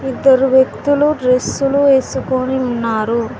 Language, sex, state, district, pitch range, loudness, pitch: Telugu, female, Telangana, Mahabubabad, 250-275 Hz, -14 LUFS, 260 Hz